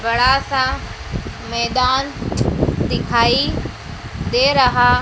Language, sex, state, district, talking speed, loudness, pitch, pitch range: Hindi, female, Madhya Pradesh, Dhar, 70 wpm, -17 LUFS, 255 Hz, 245-265 Hz